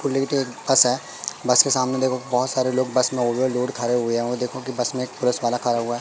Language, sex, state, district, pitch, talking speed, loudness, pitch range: Hindi, male, Madhya Pradesh, Katni, 125 Hz, 250 wpm, -21 LUFS, 125-130 Hz